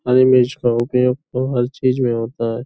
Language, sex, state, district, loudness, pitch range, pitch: Hindi, male, Uttar Pradesh, Hamirpur, -17 LUFS, 120-130 Hz, 125 Hz